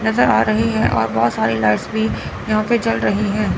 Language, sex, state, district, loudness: Hindi, female, Chandigarh, Chandigarh, -17 LUFS